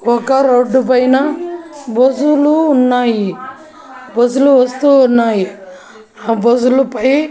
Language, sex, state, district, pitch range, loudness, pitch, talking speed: Telugu, female, Andhra Pradesh, Annamaya, 240-280 Hz, -12 LUFS, 255 Hz, 100 wpm